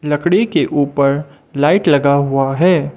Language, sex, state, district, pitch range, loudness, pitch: Hindi, male, Mizoram, Aizawl, 140-165 Hz, -14 LUFS, 145 Hz